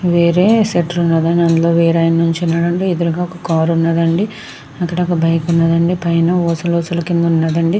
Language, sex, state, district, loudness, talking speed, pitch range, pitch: Telugu, female, Andhra Pradesh, Krishna, -15 LUFS, 160 wpm, 165-175 Hz, 170 Hz